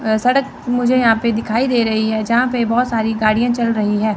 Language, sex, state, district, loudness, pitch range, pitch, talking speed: Hindi, female, Chandigarh, Chandigarh, -16 LUFS, 220-245 Hz, 230 Hz, 245 wpm